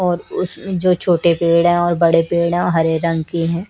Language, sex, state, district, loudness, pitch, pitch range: Hindi, female, Chhattisgarh, Raipur, -16 LUFS, 170 Hz, 170-175 Hz